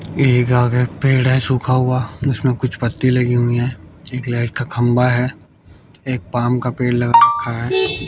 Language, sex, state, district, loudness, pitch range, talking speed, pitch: Hindi, male, Bihar, West Champaran, -17 LUFS, 120-130 Hz, 180 wpm, 125 Hz